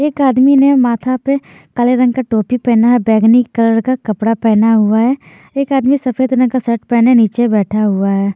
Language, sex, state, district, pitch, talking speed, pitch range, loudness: Hindi, female, Punjab, Fazilka, 240 Hz, 210 wpm, 225-255 Hz, -12 LUFS